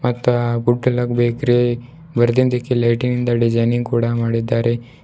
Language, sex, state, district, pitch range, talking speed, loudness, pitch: Kannada, male, Karnataka, Bidar, 120-125 Hz, 95 wpm, -18 LUFS, 120 Hz